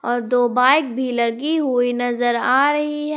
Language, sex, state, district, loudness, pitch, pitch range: Hindi, female, Jharkhand, Palamu, -18 LUFS, 250 Hz, 245-290 Hz